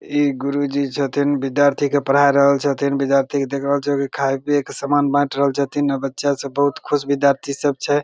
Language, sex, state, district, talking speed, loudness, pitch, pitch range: Maithili, male, Bihar, Begusarai, 225 wpm, -19 LUFS, 140 Hz, 140-145 Hz